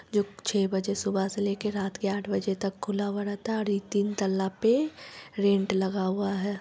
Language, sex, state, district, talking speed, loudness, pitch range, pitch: Hindi, female, Bihar, Lakhisarai, 215 wpm, -28 LUFS, 195-205 Hz, 200 Hz